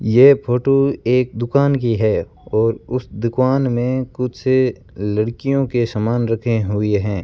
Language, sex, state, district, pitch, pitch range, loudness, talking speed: Hindi, male, Rajasthan, Bikaner, 120 Hz, 110-130 Hz, -18 LUFS, 140 wpm